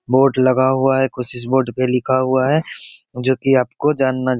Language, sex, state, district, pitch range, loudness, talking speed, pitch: Hindi, male, Bihar, Begusarai, 125-135 Hz, -17 LUFS, 220 wpm, 130 Hz